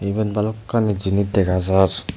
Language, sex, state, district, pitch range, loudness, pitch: Chakma, male, Tripura, Dhalai, 95-105 Hz, -20 LUFS, 100 Hz